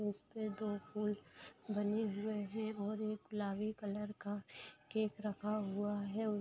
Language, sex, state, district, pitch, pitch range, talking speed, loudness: Hindi, female, Bihar, Begusarai, 210 Hz, 205-215 Hz, 160 wpm, -42 LUFS